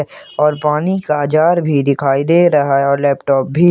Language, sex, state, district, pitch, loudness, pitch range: Hindi, male, Jharkhand, Ranchi, 150 Hz, -14 LUFS, 140-165 Hz